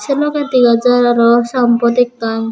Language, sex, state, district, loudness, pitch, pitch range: Chakma, female, Tripura, Dhalai, -12 LUFS, 240 Hz, 235-250 Hz